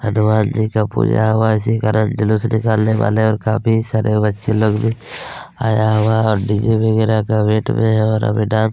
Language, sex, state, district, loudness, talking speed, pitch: Hindi, male, Chhattisgarh, Kabirdham, -16 LUFS, 195 wpm, 110 Hz